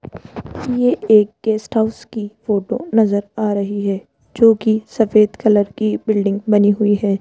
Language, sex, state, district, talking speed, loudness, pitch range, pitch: Hindi, female, Rajasthan, Jaipur, 160 wpm, -16 LUFS, 205-220 Hz, 215 Hz